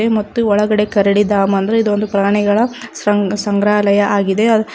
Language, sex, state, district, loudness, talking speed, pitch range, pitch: Kannada, female, Karnataka, Koppal, -14 LUFS, 125 wpm, 200-215 Hz, 205 Hz